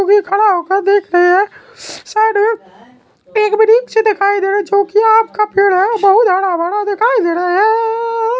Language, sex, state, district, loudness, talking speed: Hindi, male, Bihar, Madhepura, -13 LUFS, 170 wpm